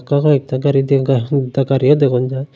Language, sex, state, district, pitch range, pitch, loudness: Bengali, male, Tripura, Unakoti, 130-140 Hz, 135 Hz, -15 LUFS